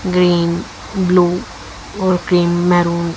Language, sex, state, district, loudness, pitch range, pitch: Hindi, female, Haryana, Jhajjar, -15 LUFS, 175-180 Hz, 175 Hz